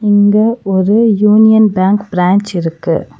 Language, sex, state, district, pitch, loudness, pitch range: Tamil, female, Tamil Nadu, Nilgiris, 205 Hz, -11 LUFS, 190-215 Hz